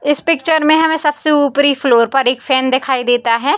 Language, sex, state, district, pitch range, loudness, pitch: Hindi, female, Bihar, Samastipur, 260-305 Hz, -13 LUFS, 280 Hz